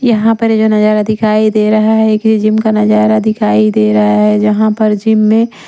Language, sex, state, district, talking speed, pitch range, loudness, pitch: Hindi, female, Maharashtra, Washim, 220 wpm, 210-220 Hz, -10 LUFS, 215 Hz